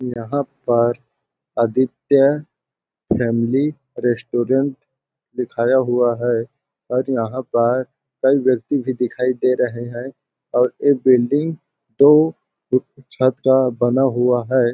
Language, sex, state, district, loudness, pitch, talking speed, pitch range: Hindi, male, Chhattisgarh, Balrampur, -18 LUFS, 130 Hz, 120 wpm, 120-135 Hz